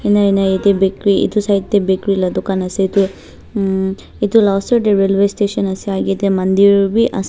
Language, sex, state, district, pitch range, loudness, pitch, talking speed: Nagamese, female, Nagaland, Dimapur, 195-205 Hz, -15 LUFS, 195 Hz, 205 wpm